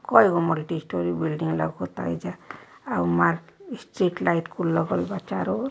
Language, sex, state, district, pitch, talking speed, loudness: Hindi, male, Uttar Pradesh, Varanasi, 155 Hz, 170 wpm, -25 LUFS